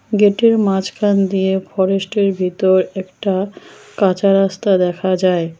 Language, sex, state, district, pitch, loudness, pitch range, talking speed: Bengali, female, West Bengal, Cooch Behar, 195 Hz, -16 LUFS, 185-200 Hz, 105 wpm